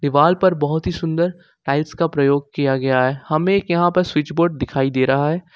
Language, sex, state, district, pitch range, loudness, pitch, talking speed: Hindi, male, Jharkhand, Ranchi, 140-175 Hz, -18 LUFS, 150 Hz, 215 wpm